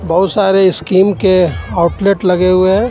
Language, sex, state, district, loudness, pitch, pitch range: Hindi, male, Jharkhand, Ranchi, -12 LUFS, 190 Hz, 185-195 Hz